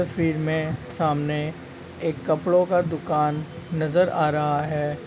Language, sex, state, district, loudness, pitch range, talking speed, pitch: Hindi, male, Uttar Pradesh, Gorakhpur, -24 LUFS, 150-165 Hz, 130 wpm, 155 Hz